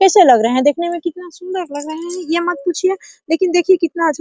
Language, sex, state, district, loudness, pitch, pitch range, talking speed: Hindi, female, Bihar, Araria, -16 LUFS, 345 Hz, 325-365 Hz, 270 wpm